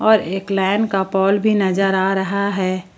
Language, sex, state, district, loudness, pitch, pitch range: Hindi, female, Jharkhand, Palamu, -18 LUFS, 195 Hz, 190-200 Hz